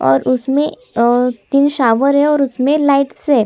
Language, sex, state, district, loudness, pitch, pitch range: Hindi, female, Chhattisgarh, Sukma, -14 LUFS, 275 Hz, 245-285 Hz